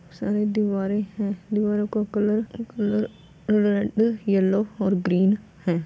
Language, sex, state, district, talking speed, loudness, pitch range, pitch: Hindi, female, Bihar, Gopalganj, 125 wpm, -24 LUFS, 195-210 Hz, 210 Hz